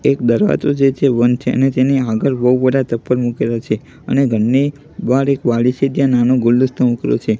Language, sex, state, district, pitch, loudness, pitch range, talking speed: Gujarati, male, Gujarat, Gandhinagar, 130 Hz, -15 LUFS, 120-135 Hz, 210 wpm